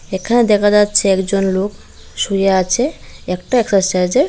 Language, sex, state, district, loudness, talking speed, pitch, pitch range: Bengali, female, Tripura, Dhalai, -15 LUFS, 125 wpm, 195 Hz, 190-215 Hz